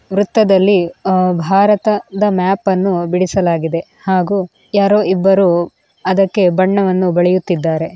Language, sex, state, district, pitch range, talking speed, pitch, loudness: Kannada, female, Karnataka, Dakshina Kannada, 180-200 Hz, 85 wpm, 190 Hz, -14 LUFS